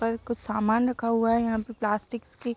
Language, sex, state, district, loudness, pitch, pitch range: Hindi, female, Jharkhand, Sahebganj, -27 LUFS, 230 Hz, 220-235 Hz